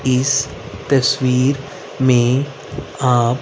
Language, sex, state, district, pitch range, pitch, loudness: Hindi, male, Haryana, Rohtak, 125-140 Hz, 130 Hz, -17 LUFS